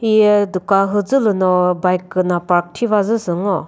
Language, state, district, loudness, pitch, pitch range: Chakhesang, Nagaland, Dimapur, -16 LUFS, 195 Hz, 180-210 Hz